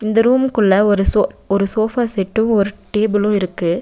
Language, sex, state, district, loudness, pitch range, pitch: Tamil, female, Tamil Nadu, Nilgiris, -16 LUFS, 200-225 Hz, 210 Hz